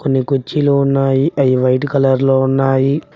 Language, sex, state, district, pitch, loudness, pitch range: Telugu, male, Telangana, Mahabubabad, 135 Hz, -14 LUFS, 130-140 Hz